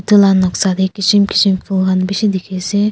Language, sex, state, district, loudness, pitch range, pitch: Nagamese, female, Nagaland, Kohima, -14 LUFS, 190-205 Hz, 195 Hz